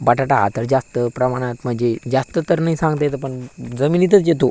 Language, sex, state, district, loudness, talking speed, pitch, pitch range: Marathi, male, Maharashtra, Aurangabad, -18 LUFS, 185 wpm, 135 Hz, 120-155 Hz